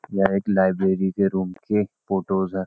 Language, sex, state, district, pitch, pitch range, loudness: Hindi, male, Uttarakhand, Uttarkashi, 95 Hz, 95-100 Hz, -22 LUFS